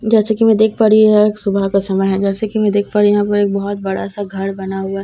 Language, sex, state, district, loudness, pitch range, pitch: Hindi, female, Bihar, Katihar, -15 LUFS, 195-215 Hz, 205 Hz